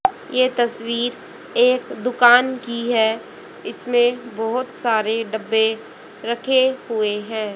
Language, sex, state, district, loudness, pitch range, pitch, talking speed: Hindi, female, Haryana, Rohtak, -19 LUFS, 225-260 Hz, 240 Hz, 105 wpm